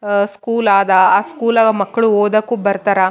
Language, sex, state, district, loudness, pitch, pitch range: Kannada, female, Karnataka, Raichur, -14 LUFS, 205 Hz, 200-230 Hz